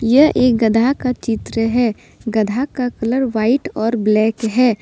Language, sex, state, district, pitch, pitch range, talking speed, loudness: Hindi, female, Jharkhand, Deoghar, 235 Hz, 225-255 Hz, 160 wpm, -17 LUFS